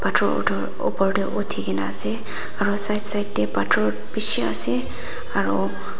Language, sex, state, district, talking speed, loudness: Nagamese, female, Nagaland, Dimapur, 140 wpm, -22 LUFS